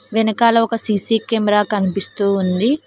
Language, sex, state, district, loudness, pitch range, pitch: Telugu, female, Telangana, Mahabubabad, -17 LUFS, 200-230 Hz, 220 Hz